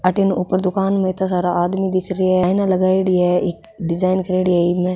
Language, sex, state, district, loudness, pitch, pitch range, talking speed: Rajasthani, female, Rajasthan, Nagaur, -18 LUFS, 185 Hz, 180-190 Hz, 205 wpm